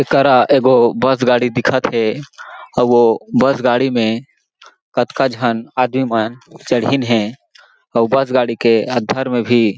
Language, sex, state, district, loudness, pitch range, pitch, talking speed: Chhattisgarhi, male, Chhattisgarh, Jashpur, -15 LUFS, 115-130 Hz, 125 Hz, 145 wpm